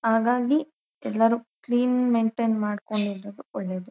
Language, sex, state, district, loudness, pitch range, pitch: Kannada, female, Karnataka, Shimoga, -25 LUFS, 210-245 Hz, 230 Hz